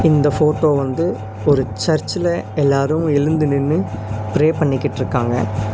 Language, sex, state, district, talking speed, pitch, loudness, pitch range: Tamil, male, Tamil Nadu, Nilgiris, 105 wpm, 145 Hz, -18 LUFS, 120-155 Hz